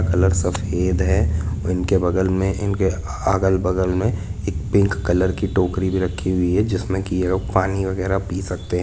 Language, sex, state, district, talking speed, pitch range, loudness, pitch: Hindi, male, Jharkhand, Jamtara, 195 wpm, 90-95 Hz, -20 LUFS, 95 Hz